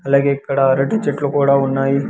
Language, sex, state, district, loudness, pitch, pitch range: Telugu, male, Andhra Pradesh, Sri Satya Sai, -16 LUFS, 140 Hz, 135-140 Hz